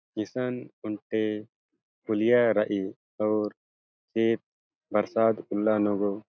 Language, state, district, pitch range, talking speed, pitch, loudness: Kurukh, Chhattisgarh, Jashpur, 105-115 Hz, 105 wpm, 105 Hz, -28 LUFS